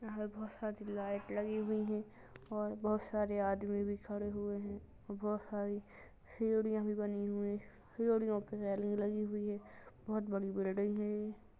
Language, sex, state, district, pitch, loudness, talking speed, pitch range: Hindi, female, Uttar Pradesh, Jalaun, 210 Hz, -39 LUFS, 165 wpm, 205-215 Hz